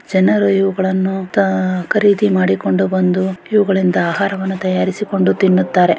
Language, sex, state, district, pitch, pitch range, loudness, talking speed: Kannada, female, Karnataka, Gulbarga, 190 Hz, 185-195 Hz, -15 LUFS, 100 wpm